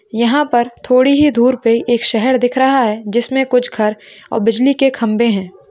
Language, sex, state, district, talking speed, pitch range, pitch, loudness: Hindi, female, Maharashtra, Dhule, 200 wpm, 225-260 Hz, 240 Hz, -14 LUFS